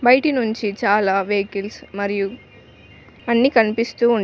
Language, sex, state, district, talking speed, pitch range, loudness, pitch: Telugu, female, Telangana, Mahabubabad, 115 wpm, 200-235 Hz, -19 LUFS, 215 Hz